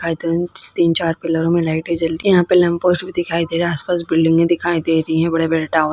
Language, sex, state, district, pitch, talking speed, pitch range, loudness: Hindi, female, Chhattisgarh, Sukma, 165 Hz, 275 wpm, 165-175 Hz, -17 LUFS